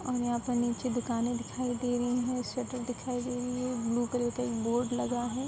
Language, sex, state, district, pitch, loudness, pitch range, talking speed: Hindi, female, Bihar, Sitamarhi, 245 Hz, -32 LUFS, 240-250 Hz, 230 wpm